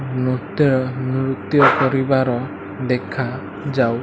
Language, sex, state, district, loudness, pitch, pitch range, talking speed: Odia, male, Odisha, Malkangiri, -19 LUFS, 130 Hz, 120-135 Hz, 90 wpm